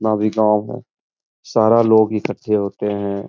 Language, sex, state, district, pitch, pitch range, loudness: Hindi, male, Uttar Pradesh, Etah, 110 Hz, 105-110 Hz, -17 LUFS